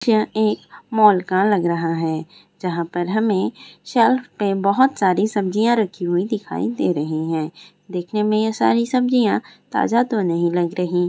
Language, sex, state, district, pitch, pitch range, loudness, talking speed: Hindi, female, Bihar, Bhagalpur, 200 Hz, 175-220 Hz, -20 LUFS, 175 wpm